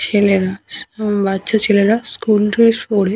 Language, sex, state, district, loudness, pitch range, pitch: Bengali, female, West Bengal, Paschim Medinipur, -15 LUFS, 200-220 Hz, 205 Hz